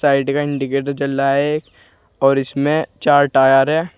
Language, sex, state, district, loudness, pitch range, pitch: Hindi, male, Uttar Pradesh, Saharanpur, -16 LUFS, 135-145 Hz, 140 Hz